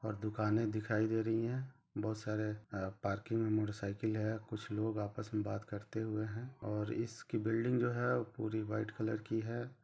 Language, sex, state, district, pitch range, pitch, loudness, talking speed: Hindi, male, Chhattisgarh, Rajnandgaon, 105-115 Hz, 110 Hz, -38 LUFS, 190 wpm